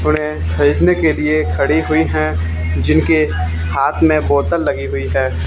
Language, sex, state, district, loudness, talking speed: Hindi, male, Haryana, Charkhi Dadri, -15 LUFS, 145 wpm